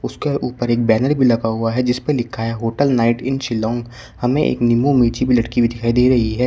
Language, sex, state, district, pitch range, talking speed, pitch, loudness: Hindi, male, Uttar Pradesh, Shamli, 115-125 Hz, 250 wpm, 120 Hz, -17 LUFS